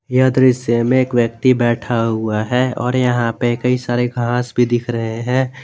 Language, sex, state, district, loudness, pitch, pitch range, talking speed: Hindi, male, Jharkhand, Garhwa, -17 LUFS, 120 Hz, 120-125 Hz, 190 wpm